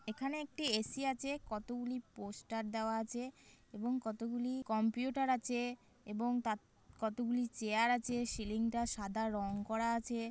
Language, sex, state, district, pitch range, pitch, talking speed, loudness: Bengali, female, West Bengal, Kolkata, 220-245 Hz, 235 Hz, 135 wpm, -39 LUFS